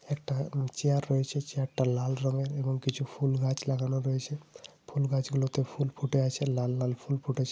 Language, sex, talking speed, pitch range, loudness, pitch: Bengali, male, 170 wpm, 130-140 Hz, -31 LUFS, 135 Hz